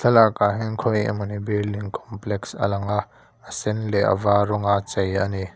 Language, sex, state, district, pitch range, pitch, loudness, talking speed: Mizo, male, Mizoram, Aizawl, 100-105 Hz, 105 Hz, -23 LUFS, 205 wpm